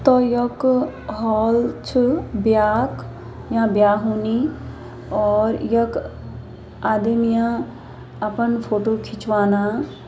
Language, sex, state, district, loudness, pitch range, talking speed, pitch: Hindi, female, Uttarakhand, Uttarkashi, -20 LUFS, 210-235 Hz, 90 wpm, 220 Hz